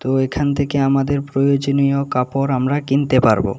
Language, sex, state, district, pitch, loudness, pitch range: Bengali, male, Tripura, West Tripura, 135 Hz, -17 LUFS, 130-140 Hz